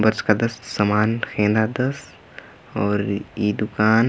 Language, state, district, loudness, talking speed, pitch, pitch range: Kurukh, Chhattisgarh, Jashpur, -21 LUFS, 115 wpm, 105 Hz, 105-115 Hz